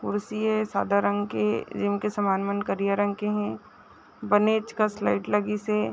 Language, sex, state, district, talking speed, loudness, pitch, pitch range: Chhattisgarhi, female, Chhattisgarh, Raigarh, 160 wpm, -26 LUFS, 210 Hz, 200-215 Hz